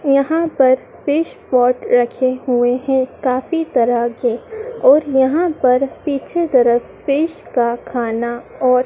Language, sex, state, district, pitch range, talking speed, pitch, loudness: Hindi, female, Madhya Pradesh, Dhar, 245-295 Hz, 130 wpm, 260 Hz, -16 LUFS